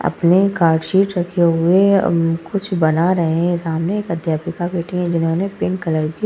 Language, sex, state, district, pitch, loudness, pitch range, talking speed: Hindi, female, Uttar Pradesh, Hamirpur, 170 Hz, -17 LUFS, 165-185 Hz, 190 wpm